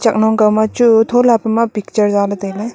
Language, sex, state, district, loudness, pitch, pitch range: Wancho, female, Arunachal Pradesh, Longding, -13 LUFS, 220 Hz, 210-230 Hz